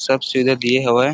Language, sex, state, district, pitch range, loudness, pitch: Chhattisgarhi, male, Chhattisgarh, Rajnandgaon, 125-135 Hz, -17 LUFS, 130 Hz